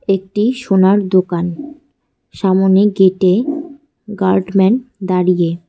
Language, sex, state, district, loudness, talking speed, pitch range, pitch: Bengali, female, West Bengal, Cooch Behar, -14 LUFS, 75 wpm, 185-235 Hz, 195 Hz